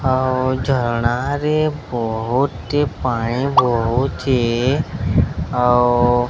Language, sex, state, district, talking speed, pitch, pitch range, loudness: Odia, male, Odisha, Sambalpur, 65 wpm, 125 Hz, 120-135 Hz, -18 LUFS